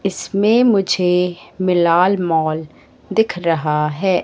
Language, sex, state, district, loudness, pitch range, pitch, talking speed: Hindi, female, Madhya Pradesh, Katni, -17 LUFS, 165-195 Hz, 180 Hz, 100 wpm